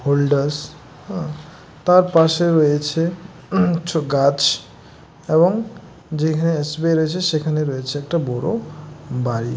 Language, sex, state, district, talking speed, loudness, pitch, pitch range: Bengali, male, West Bengal, Dakshin Dinajpur, 115 wpm, -19 LUFS, 155 Hz, 145-170 Hz